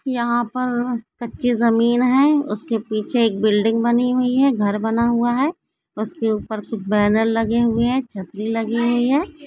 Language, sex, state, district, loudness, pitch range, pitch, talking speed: Hindi, female, West Bengal, Jalpaiguri, -19 LUFS, 220-250 Hz, 235 Hz, 170 wpm